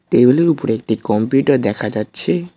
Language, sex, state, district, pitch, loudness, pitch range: Bengali, male, West Bengal, Cooch Behar, 115 Hz, -16 LUFS, 105-140 Hz